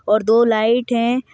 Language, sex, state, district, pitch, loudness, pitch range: Hindi, female, Chhattisgarh, Sarguja, 230 Hz, -16 LUFS, 220-240 Hz